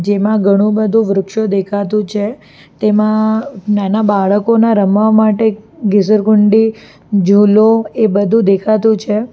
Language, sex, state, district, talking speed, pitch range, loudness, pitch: Gujarati, female, Gujarat, Valsad, 115 wpm, 200-220 Hz, -12 LUFS, 215 Hz